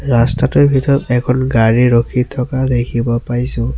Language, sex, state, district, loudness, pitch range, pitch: Assamese, male, Assam, Sonitpur, -14 LUFS, 120-130 Hz, 125 Hz